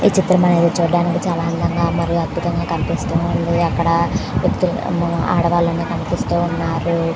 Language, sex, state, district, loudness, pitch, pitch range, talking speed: Telugu, female, Andhra Pradesh, Visakhapatnam, -18 LUFS, 170 Hz, 170-175 Hz, 110 wpm